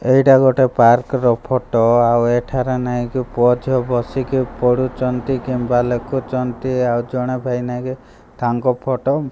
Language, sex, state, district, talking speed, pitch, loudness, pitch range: Odia, male, Odisha, Malkangiri, 130 wpm, 125 Hz, -17 LUFS, 120-130 Hz